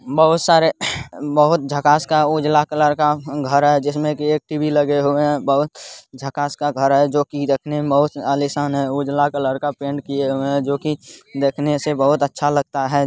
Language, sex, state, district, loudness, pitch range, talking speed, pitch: Hindi, male, Bihar, Supaul, -18 LUFS, 140-150 Hz, 195 wpm, 145 Hz